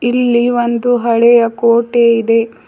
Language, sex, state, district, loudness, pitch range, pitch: Kannada, female, Karnataka, Bidar, -12 LUFS, 230-240 Hz, 235 Hz